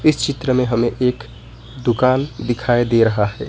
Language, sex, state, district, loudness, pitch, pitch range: Hindi, male, West Bengal, Alipurduar, -18 LUFS, 120 Hz, 115-130 Hz